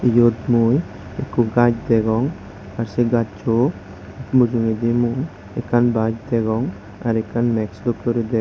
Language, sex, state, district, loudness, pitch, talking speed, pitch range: Chakma, male, Tripura, West Tripura, -20 LUFS, 115 Hz, 135 wpm, 110-120 Hz